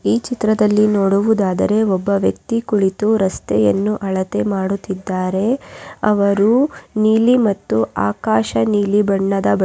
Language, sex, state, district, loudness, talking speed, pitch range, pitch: Kannada, female, Karnataka, Raichur, -17 LUFS, 30 wpm, 190-215 Hz, 200 Hz